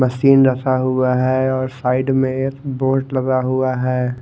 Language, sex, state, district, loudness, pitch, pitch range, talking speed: Hindi, male, Haryana, Jhajjar, -17 LUFS, 130 Hz, 130-135 Hz, 155 wpm